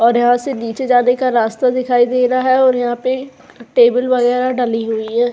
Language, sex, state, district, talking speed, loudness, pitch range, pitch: Hindi, female, Uttar Pradesh, Jyotiba Phule Nagar, 215 wpm, -15 LUFS, 240-255 Hz, 245 Hz